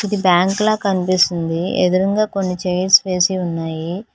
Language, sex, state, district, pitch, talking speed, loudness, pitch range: Telugu, female, Telangana, Hyderabad, 185 Hz, 100 wpm, -17 LUFS, 180-195 Hz